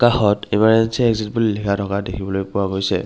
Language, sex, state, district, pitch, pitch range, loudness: Assamese, male, Assam, Kamrup Metropolitan, 105 Hz, 100-115 Hz, -19 LUFS